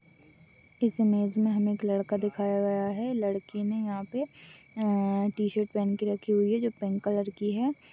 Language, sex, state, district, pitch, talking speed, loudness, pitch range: Hindi, female, West Bengal, Dakshin Dinajpur, 205 Hz, 205 wpm, -29 LUFS, 200-215 Hz